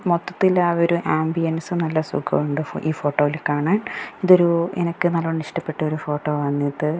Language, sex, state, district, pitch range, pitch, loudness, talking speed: Malayalam, female, Kerala, Kasaragod, 150-175 Hz, 165 Hz, -21 LUFS, 145 wpm